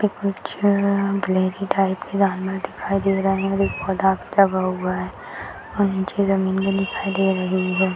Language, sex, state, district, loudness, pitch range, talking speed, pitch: Hindi, female, Bihar, Purnia, -21 LUFS, 190-195 Hz, 120 wpm, 195 Hz